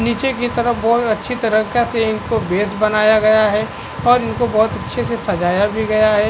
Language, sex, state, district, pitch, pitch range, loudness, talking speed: Hindi, male, Uttar Pradesh, Varanasi, 220 Hz, 215-235 Hz, -16 LUFS, 200 wpm